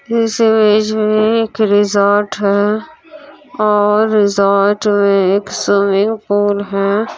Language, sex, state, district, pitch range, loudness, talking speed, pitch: Hindi, female, Bihar, Kishanganj, 200-220 Hz, -13 LUFS, 110 wpm, 210 Hz